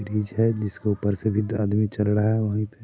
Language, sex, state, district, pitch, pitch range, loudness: Hindi, male, Bihar, Sitamarhi, 105 Hz, 105-110 Hz, -24 LUFS